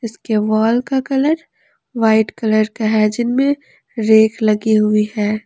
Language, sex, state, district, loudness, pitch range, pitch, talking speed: Hindi, female, Jharkhand, Ranchi, -16 LUFS, 215-245 Hz, 220 Hz, 145 wpm